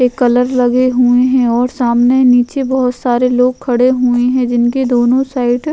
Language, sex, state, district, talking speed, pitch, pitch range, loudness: Hindi, female, Chhattisgarh, Korba, 190 wpm, 250 Hz, 245-255 Hz, -12 LUFS